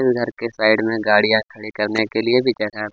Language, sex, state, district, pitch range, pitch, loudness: Hindi, male, Chhattisgarh, Kabirdham, 105-115 Hz, 110 Hz, -18 LUFS